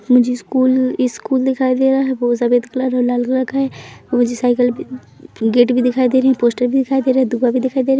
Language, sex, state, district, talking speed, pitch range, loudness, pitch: Hindi, female, Chhattisgarh, Bilaspur, 260 wpm, 245-260 Hz, -16 LUFS, 255 Hz